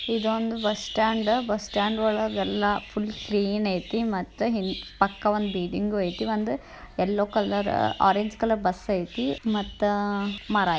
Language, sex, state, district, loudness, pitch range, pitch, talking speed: Kannada, male, Karnataka, Dharwad, -26 LUFS, 200-220 Hz, 210 Hz, 130 wpm